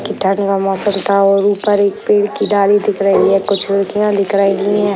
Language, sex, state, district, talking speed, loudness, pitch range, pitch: Hindi, male, Bihar, Sitamarhi, 215 wpm, -14 LUFS, 195-205 Hz, 200 Hz